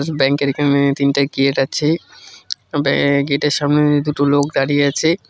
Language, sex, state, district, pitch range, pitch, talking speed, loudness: Bengali, male, West Bengal, Cooch Behar, 140-145 Hz, 145 Hz, 135 wpm, -16 LUFS